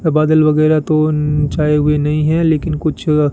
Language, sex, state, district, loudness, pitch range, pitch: Hindi, male, Rajasthan, Bikaner, -14 LUFS, 150-155 Hz, 155 Hz